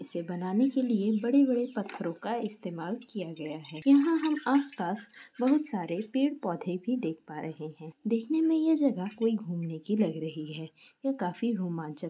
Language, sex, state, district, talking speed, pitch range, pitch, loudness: Hindi, female, Maharashtra, Aurangabad, 195 wpm, 170-250 Hz, 210 Hz, -30 LUFS